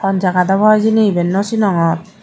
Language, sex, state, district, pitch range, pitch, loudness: Chakma, female, Tripura, Dhalai, 180-215 Hz, 195 Hz, -14 LUFS